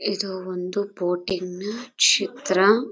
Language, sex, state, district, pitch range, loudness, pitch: Kannada, female, Karnataka, Chamarajanagar, 180-205 Hz, -23 LUFS, 190 Hz